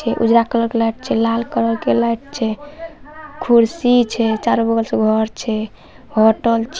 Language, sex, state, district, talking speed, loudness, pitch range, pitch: Maithili, male, Bihar, Saharsa, 150 wpm, -17 LUFS, 225-245 Hz, 230 Hz